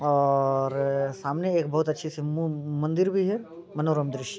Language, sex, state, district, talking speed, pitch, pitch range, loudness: Hindi, female, Bihar, Muzaffarpur, 165 wpm, 150 Hz, 140-165 Hz, -26 LUFS